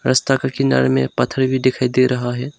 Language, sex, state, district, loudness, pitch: Hindi, male, Arunachal Pradesh, Longding, -17 LUFS, 125 Hz